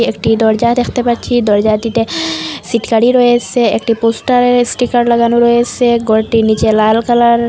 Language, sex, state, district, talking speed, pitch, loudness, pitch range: Bengali, female, Assam, Hailakandi, 135 wpm, 235 Hz, -12 LUFS, 225-240 Hz